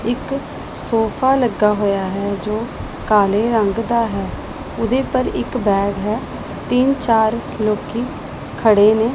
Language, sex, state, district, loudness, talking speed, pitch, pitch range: Punjabi, female, Punjab, Pathankot, -18 LUFS, 130 wpm, 220 Hz, 210-245 Hz